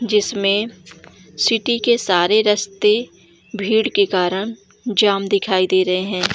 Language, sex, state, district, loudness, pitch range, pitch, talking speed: Hindi, female, Jharkhand, Jamtara, -17 LUFS, 185-220 Hz, 200 Hz, 125 wpm